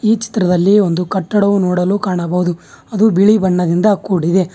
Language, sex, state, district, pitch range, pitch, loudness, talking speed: Kannada, male, Karnataka, Bangalore, 180-205 Hz, 190 Hz, -14 LUFS, 130 wpm